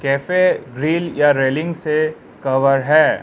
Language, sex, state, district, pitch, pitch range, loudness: Hindi, male, Arunachal Pradesh, Lower Dibang Valley, 150 Hz, 135-160 Hz, -17 LUFS